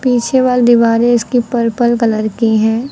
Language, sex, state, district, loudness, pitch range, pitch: Hindi, female, Uttar Pradesh, Lucknow, -12 LUFS, 230-245 Hz, 235 Hz